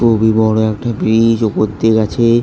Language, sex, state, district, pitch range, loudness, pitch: Bengali, male, West Bengal, Jalpaiguri, 110-115 Hz, -13 LUFS, 110 Hz